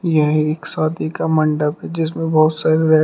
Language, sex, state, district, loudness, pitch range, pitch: Hindi, male, Uttar Pradesh, Shamli, -18 LUFS, 155-160 Hz, 155 Hz